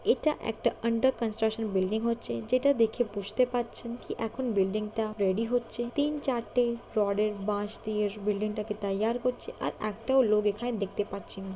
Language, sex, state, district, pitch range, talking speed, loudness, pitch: Bengali, female, West Bengal, Kolkata, 210-240 Hz, 170 wpm, -30 LUFS, 220 Hz